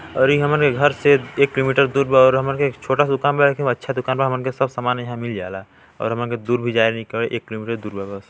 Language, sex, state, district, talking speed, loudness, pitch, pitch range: Chhattisgarhi, male, Chhattisgarh, Balrampur, 280 wpm, -19 LUFS, 130 Hz, 115-140 Hz